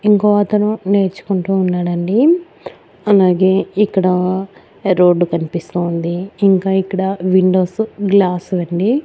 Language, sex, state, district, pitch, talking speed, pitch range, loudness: Telugu, female, Andhra Pradesh, Annamaya, 190 Hz, 85 wpm, 180-205 Hz, -15 LUFS